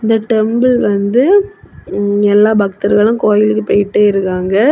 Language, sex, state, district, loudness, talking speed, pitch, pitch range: Tamil, female, Tamil Nadu, Kanyakumari, -12 LUFS, 100 wpm, 210 Hz, 205-225 Hz